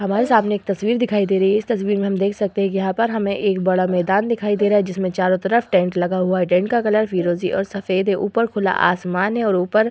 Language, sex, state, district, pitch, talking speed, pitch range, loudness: Hindi, female, Uttar Pradesh, Hamirpur, 200 Hz, 285 wpm, 185-210 Hz, -19 LUFS